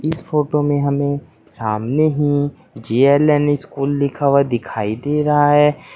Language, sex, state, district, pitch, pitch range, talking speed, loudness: Hindi, male, Uttar Pradesh, Saharanpur, 145 Hz, 135-150 Hz, 140 wpm, -17 LUFS